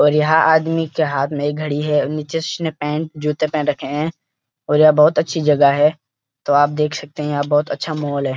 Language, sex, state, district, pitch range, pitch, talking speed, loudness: Hindi, male, Uttarakhand, Uttarkashi, 145-155 Hz, 150 Hz, 230 wpm, -17 LUFS